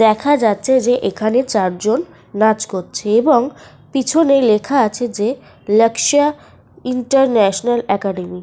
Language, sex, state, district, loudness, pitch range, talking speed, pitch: Bengali, female, Jharkhand, Sahebganj, -16 LUFS, 210-260 Hz, 50 wpm, 225 Hz